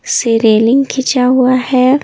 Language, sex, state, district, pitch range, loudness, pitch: Hindi, female, Bihar, Patna, 245-265 Hz, -11 LUFS, 255 Hz